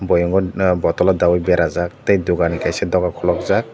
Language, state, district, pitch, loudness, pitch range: Kokborok, Tripura, Dhalai, 90 Hz, -17 LUFS, 85-95 Hz